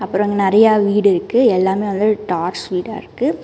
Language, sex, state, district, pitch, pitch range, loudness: Tamil, female, Karnataka, Bangalore, 200 Hz, 190-210 Hz, -16 LUFS